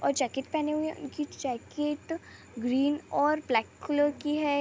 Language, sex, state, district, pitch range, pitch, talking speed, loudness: Hindi, female, Jharkhand, Sahebganj, 270-305 Hz, 295 Hz, 180 wpm, -30 LUFS